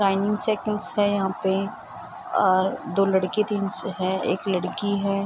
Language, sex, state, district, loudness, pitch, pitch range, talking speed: Hindi, female, Bihar, Sitamarhi, -24 LUFS, 195 Hz, 190-205 Hz, 150 wpm